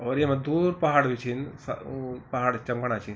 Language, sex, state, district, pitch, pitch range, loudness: Garhwali, male, Uttarakhand, Tehri Garhwal, 130 Hz, 125-145 Hz, -27 LUFS